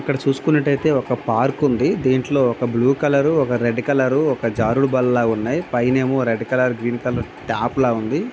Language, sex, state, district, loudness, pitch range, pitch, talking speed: Telugu, male, Andhra Pradesh, Visakhapatnam, -19 LUFS, 120-140 Hz, 130 Hz, 175 wpm